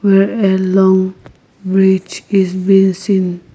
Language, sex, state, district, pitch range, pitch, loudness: English, female, Nagaland, Kohima, 185-195 Hz, 190 Hz, -13 LUFS